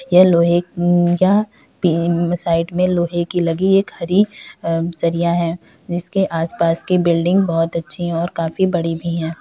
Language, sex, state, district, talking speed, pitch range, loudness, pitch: Hindi, female, Uttar Pradesh, Varanasi, 160 wpm, 170-180 Hz, -17 LUFS, 175 Hz